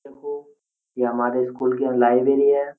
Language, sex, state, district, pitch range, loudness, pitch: Hindi, male, Uttar Pradesh, Jyotiba Phule Nagar, 125-140 Hz, -20 LUFS, 130 Hz